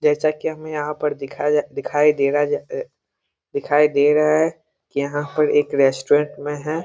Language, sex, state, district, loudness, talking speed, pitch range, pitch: Hindi, male, Bihar, Muzaffarpur, -20 LUFS, 190 wpm, 145-155 Hz, 150 Hz